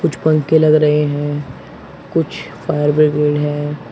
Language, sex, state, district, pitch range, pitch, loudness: Hindi, male, Uttar Pradesh, Shamli, 145-150 Hz, 150 Hz, -16 LUFS